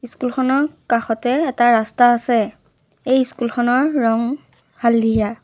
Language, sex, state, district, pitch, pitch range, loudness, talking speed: Assamese, female, Assam, Sonitpur, 245 Hz, 230-260 Hz, -18 LUFS, 120 wpm